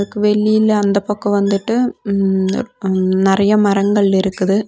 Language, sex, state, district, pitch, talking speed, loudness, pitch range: Tamil, female, Tamil Nadu, Nilgiris, 200 Hz, 130 wpm, -15 LUFS, 195-210 Hz